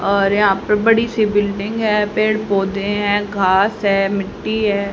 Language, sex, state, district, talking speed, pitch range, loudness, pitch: Hindi, female, Haryana, Charkhi Dadri, 170 wpm, 200-215 Hz, -17 LUFS, 205 Hz